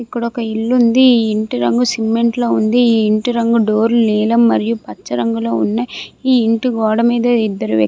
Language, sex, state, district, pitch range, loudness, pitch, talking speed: Telugu, female, Andhra Pradesh, Visakhapatnam, 215-240 Hz, -15 LUFS, 230 Hz, 205 wpm